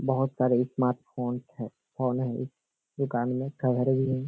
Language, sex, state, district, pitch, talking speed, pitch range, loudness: Hindi, male, Bihar, Kishanganj, 130 Hz, 125 wpm, 125-130 Hz, -29 LUFS